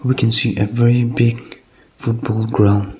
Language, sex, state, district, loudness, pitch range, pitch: English, male, Nagaland, Kohima, -17 LUFS, 105-120 Hz, 115 Hz